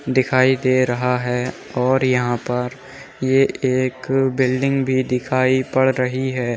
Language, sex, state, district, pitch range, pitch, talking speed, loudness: Hindi, male, Uttar Pradesh, Muzaffarnagar, 125-130 Hz, 130 Hz, 135 wpm, -19 LUFS